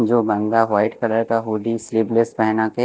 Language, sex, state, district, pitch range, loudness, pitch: Hindi, male, Maharashtra, Mumbai Suburban, 110-115 Hz, -19 LUFS, 110 Hz